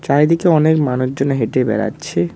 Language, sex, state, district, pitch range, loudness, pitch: Bengali, male, West Bengal, Cooch Behar, 115-155 Hz, -16 LUFS, 135 Hz